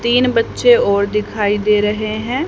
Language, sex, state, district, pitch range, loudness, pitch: Hindi, female, Haryana, Charkhi Dadri, 210-245 Hz, -15 LUFS, 215 Hz